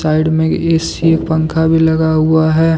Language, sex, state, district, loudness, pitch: Hindi, male, Jharkhand, Deoghar, -13 LUFS, 160 Hz